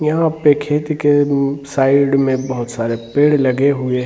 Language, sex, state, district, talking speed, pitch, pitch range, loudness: Hindi, male, Bihar, Gaya, 190 wpm, 140 Hz, 130-145 Hz, -16 LUFS